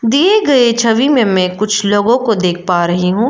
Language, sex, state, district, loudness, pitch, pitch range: Hindi, female, Arunachal Pradesh, Lower Dibang Valley, -12 LUFS, 225 Hz, 185-245 Hz